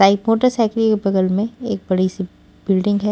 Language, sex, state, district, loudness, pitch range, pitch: Hindi, female, Maharashtra, Washim, -18 LUFS, 190-225 Hz, 205 Hz